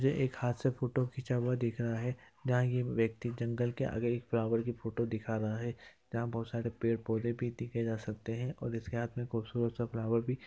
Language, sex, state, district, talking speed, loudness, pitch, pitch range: Hindi, male, Chhattisgarh, Jashpur, 230 wpm, -35 LUFS, 120 Hz, 115-125 Hz